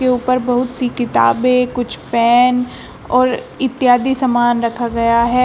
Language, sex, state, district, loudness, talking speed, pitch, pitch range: Hindi, female, Uttar Pradesh, Shamli, -15 LUFS, 130 wpm, 245 Hz, 240-250 Hz